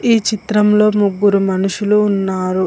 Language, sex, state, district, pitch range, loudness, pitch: Telugu, female, Telangana, Hyderabad, 195-210 Hz, -14 LUFS, 205 Hz